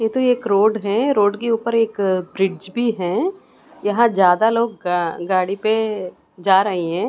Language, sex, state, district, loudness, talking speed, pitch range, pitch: Hindi, female, Chandigarh, Chandigarh, -19 LUFS, 180 wpm, 185-230 Hz, 205 Hz